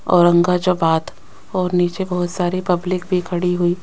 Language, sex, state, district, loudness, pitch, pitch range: Hindi, female, Rajasthan, Jaipur, -18 LUFS, 180 Hz, 175-185 Hz